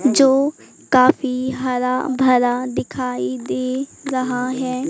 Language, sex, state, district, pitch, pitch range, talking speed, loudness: Hindi, female, Madhya Pradesh, Katni, 255 Hz, 250-265 Hz, 100 wpm, -19 LUFS